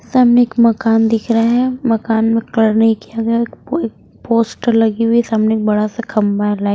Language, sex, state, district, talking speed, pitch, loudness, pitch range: Hindi, female, Bihar, West Champaran, 205 wpm, 225 Hz, -15 LUFS, 215-230 Hz